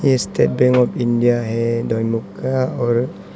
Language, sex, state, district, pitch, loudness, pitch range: Hindi, male, Arunachal Pradesh, Papum Pare, 120 Hz, -18 LUFS, 115-125 Hz